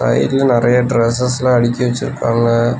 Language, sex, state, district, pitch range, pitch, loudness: Tamil, male, Tamil Nadu, Nilgiris, 115-125 Hz, 120 Hz, -14 LUFS